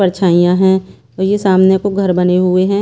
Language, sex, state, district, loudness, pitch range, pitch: Hindi, female, Himachal Pradesh, Shimla, -12 LUFS, 180-195 Hz, 190 Hz